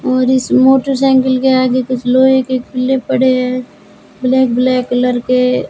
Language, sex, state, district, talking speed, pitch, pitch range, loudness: Hindi, female, Rajasthan, Bikaner, 170 wpm, 255 Hz, 255-260 Hz, -13 LUFS